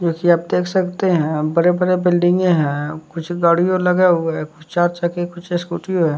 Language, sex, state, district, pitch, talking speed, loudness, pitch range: Hindi, male, Bihar, West Champaran, 175 Hz, 215 wpm, -17 LUFS, 165-180 Hz